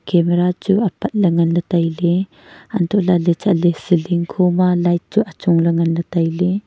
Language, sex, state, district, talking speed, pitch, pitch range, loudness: Wancho, female, Arunachal Pradesh, Longding, 135 wpm, 175 Hz, 170-185 Hz, -17 LUFS